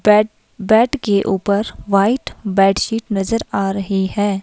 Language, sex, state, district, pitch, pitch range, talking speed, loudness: Hindi, female, Himachal Pradesh, Shimla, 200 Hz, 195-220 Hz, 135 wpm, -17 LUFS